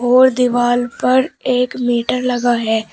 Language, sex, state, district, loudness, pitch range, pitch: Hindi, female, Uttar Pradesh, Shamli, -15 LUFS, 240-250 Hz, 245 Hz